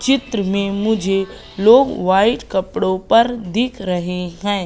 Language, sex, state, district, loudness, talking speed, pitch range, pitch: Hindi, female, Madhya Pradesh, Katni, -17 LUFS, 130 wpm, 190-230 Hz, 200 Hz